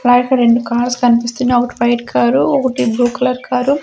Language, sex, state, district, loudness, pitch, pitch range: Telugu, female, Andhra Pradesh, Sri Satya Sai, -14 LUFS, 245 Hz, 240-255 Hz